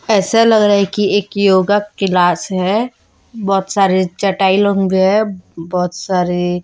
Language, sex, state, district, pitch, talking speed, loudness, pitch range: Hindi, female, Chhattisgarh, Raipur, 195 Hz, 145 wpm, -14 LUFS, 185-205 Hz